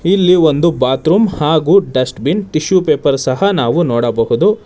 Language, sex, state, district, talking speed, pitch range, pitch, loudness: Kannada, male, Karnataka, Bangalore, 130 wpm, 130-185 Hz, 160 Hz, -13 LUFS